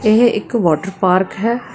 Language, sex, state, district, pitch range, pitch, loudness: Punjabi, female, Karnataka, Bangalore, 185-230 Hz, 210 Hz, -16 LUFS